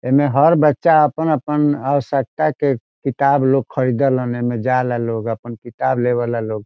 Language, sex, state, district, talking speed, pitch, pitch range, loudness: Bhojpuri, male, Bihar, Saran, 155 wpm, 130 Hz, 120-145 Hz, -17 LUFS